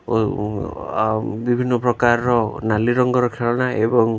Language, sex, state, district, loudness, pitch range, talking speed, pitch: Odia, male, Odisha, Khordha, -19 LUFS, 110-120 Hz, 130 wpm, 120 Hz